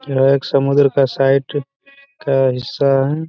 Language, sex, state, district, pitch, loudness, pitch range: Hindi, male, Chhattisgarh, Raigarh, 140 Hz, -16 LUFS, 135-145 Hz